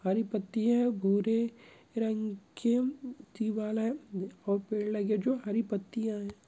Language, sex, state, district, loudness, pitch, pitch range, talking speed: Hindi, female, Andhra Pradesh, Krishna, -32 LUFS, 220 Hz, 205-235 Hz, 150 wpm